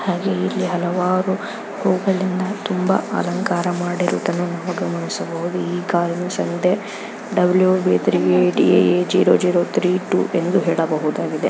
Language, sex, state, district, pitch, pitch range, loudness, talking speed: Kannada, female, Karnataka, Raichur, 180 Hz, 170-185 Hz, -19 LUFS, 100 wpm